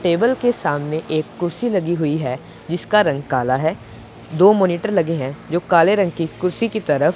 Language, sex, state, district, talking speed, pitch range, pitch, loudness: Hindi, male, Punjab, Pathankot, 200 wpm, 150-190 Hz, 170 Hz, -19 LUFS